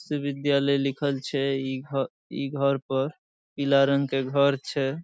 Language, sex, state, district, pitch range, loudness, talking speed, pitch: Maithili, male, Bihar, Saharsa, 135-140 Hz, -26 LUFS, 180 wpm, 140 Hz